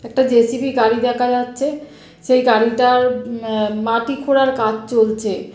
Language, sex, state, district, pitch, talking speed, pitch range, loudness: Bengali, female, West Bengal, North 24 Parganas, 245 Hz, 130 wpm, 225-255 Hz, -17 LUFS